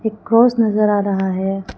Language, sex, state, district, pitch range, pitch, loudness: Hindi, female, Arunachal Pradesh, Lower Dibang Valley, 195-220 Hz, 210 Hz, -16 LUFS